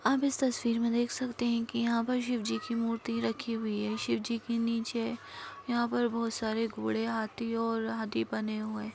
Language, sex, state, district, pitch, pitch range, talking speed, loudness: Hindi, female, Chhattisgarh, Korba, 230 Hz, 220-235 Hz, 255 wpm, -32 LUFS